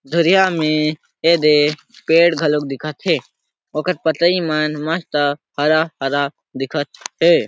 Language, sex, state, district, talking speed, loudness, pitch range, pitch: Chhattisgarhi, male, Chhattisgarh, Sarguja, 120 wpm, -17 LUFS, 150-170 Hz, 155 Hz